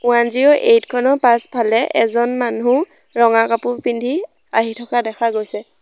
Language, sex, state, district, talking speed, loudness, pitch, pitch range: Assamese, female, Assam, Sonitpur, 145 wpm, -16 LUFS, 240 Hz, 230-255 Hz